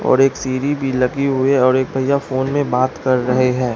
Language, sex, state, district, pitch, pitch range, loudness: Hindi, male, Bihar, Katihar, 130 Hz, 130-135 Hz, -17 LUFS